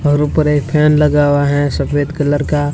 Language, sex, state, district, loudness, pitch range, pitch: Hindi, female, Rajasthan, Bikaner, -14 LUFS, 145-150 Hz, 145 Hz